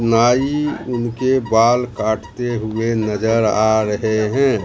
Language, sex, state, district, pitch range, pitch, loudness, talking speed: Hindi, male, Bihar, Katihar, 110-125 Hz, 115 Hz, -17 LUFS, 115 wpm